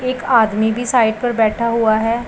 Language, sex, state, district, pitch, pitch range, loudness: Hindi, male, Punjab, Pathankot, 230 Hz, 220-240 Hz, -16 LUFS